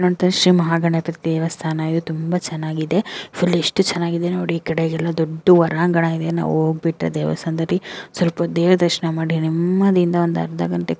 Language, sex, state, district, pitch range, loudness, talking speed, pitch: Kannada, female, Karnataka, Dakshina Kannada, 160-175 Hz, -19 LUFS, 155 wpm, 165 Hz